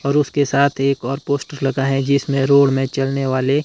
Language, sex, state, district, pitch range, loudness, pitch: Hindi, male, Himachal Pradesh, Shimla, 135-140 Hz, -18 LUFS, 140 Hz